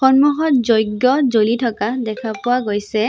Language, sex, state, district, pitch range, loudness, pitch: Assamese, female, Assam, Sonitpur, 220-260 Hz, -17 LUFS, 235 Hz